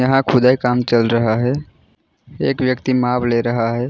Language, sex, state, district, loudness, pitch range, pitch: Hindi, male, Jharkhand, Jamtara, -17 LUFS, 120-130 Hz, 125 Hz